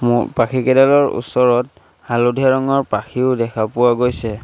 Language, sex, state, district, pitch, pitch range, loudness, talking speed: Assamese, male, Assam, Sonitpur, 120 Hz, 115-130 Hz, -16 LUFS, 120 wpm